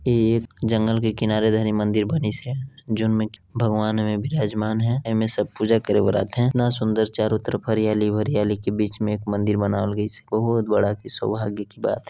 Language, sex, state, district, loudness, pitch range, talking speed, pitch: Hindi, male, Chhattisgarh, Balrampur, -22 LUFS, 105-115 Hz, 205 wpm, 110 Hz